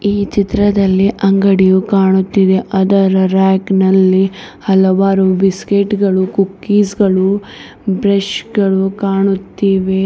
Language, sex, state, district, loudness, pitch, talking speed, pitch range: Kannada, female, Karnataka, Bidar, -13 LUFS, 195 Hz, 90 wpm, 190-200 Hz